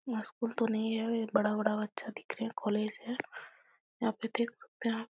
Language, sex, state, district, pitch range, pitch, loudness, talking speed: Hindi, female, Uttar Pradesh, Etah, 215-235 Hz, 225 Hz, -35 LUFS, 190 wpm